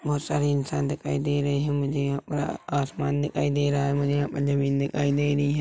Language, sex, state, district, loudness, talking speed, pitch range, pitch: Hindi, male, Chhattisgarh, Rajnandgaon, -26 LUFS, 245 wpm, 140-145 Hz, 145 Hz